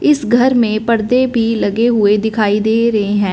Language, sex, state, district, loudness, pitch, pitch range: Hindi, female, Punjab, Fazilka, -14 LUFS, 225 Hz, 210-235 Hz